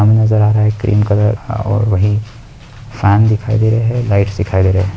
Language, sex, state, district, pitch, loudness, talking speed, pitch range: Hindi, male, Bihar, Jamui, 105 Hz, -13 LUFS, 240 wpm, 105-110 Hz